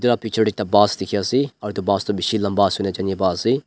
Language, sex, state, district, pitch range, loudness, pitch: Nagamese, male, Nagaland, Dimapur, 100-110 Hz, -20 LUFS, 105 Hz